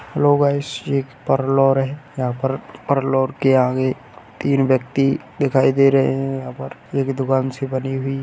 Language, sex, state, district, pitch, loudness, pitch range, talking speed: Hindi, male, Uttar Pradesh, Etah, 135 Hz, -19 LUFS, 130-135 Hz, 180 wpm